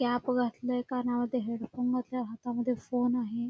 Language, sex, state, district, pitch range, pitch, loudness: Marathi, female, Karnataka, Belgaum, 240-250 Hz, 245 Hz, -32 LUFS